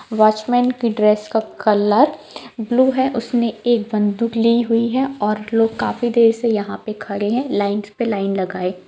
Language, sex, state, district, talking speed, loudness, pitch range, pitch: Hindi, female, Jharkhand, Jamtara, 160 wpm, -18 LUFS, 210-240 Hz, 225 Hz